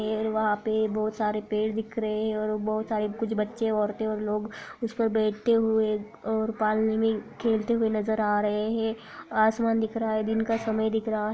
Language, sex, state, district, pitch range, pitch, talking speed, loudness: Hindi, female, Bihar, Purnia, 215-220 Hz, 220 Hz, 210 wpm, -27 LUFS